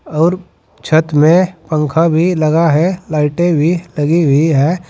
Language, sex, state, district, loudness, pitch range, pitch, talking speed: Hindi, male, Uttar Pradesh, Saharanpur, -13 LUFS, 155-175 Hz, 160 Hz, 145 wpm